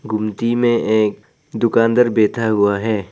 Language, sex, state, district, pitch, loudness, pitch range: Hindi, male, Arunachal Pradesh, Papum Pare, 110 Hz, -17 LUFS, 110-115 Hz